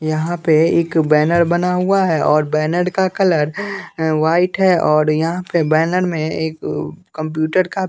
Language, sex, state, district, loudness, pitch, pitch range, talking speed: Hindi, male, Bihar, West Champaran, -16 LUFS, 170 Hz, 155-180 Hz, 165 wpm